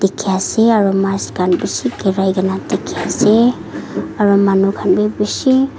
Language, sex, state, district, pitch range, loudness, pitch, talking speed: Nagamese, female, Nagaland, Dimapur, 195-215 Hz, -15 LUFS, 195 Hz, 165 wpm